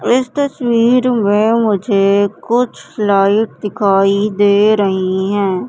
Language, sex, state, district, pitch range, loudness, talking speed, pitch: Hindi, female, Madhya Pradesh, Katni, 195-230 Hz, -14 LUFS, 105 wpm, 205 Hz